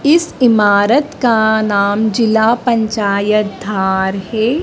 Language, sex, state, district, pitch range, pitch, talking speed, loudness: Hindi, male, Madhya Pradesh, Dhar, 205-235 Hz, 220 Hz, 105 wpm, -13 LUFS